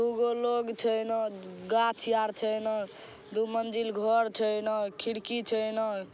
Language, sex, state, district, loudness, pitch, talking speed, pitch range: Maithili, female, Bihar, Saharsa, -30 LUFS, 220 Hz, 175 wpm, 215-230 Hz